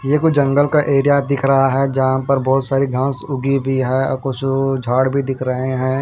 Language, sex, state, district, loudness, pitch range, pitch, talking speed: Hindi, male, Haryana, Jhajjar, -17 LUFS, 130-140 Hz, 135 Hz, 230 wpm